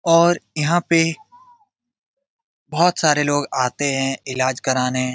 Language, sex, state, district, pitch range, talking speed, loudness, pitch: Hindi, male, Bihar, Jamui, 135-180 Hz, 130 wpm, -19 LUFS, 160 Hz